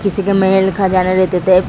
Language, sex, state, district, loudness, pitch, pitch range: Hindi, female, Bihar, Saran, -13 LUFS, 190 Hz, 185-195 Hz